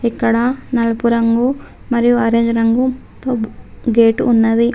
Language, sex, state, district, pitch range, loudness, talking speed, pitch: Telugu, female, Telangana, Adilabad, 230-245 Hz, -15 LUFS, 115 wpm, 235 Hz